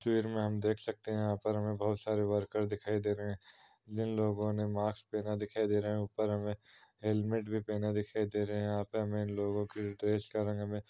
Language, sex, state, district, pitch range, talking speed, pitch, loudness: Hindi, male, Uttar Pradesh, Ghazipur, 105-110 Hz, 240 wpm, 105 Hz, -35 LUFS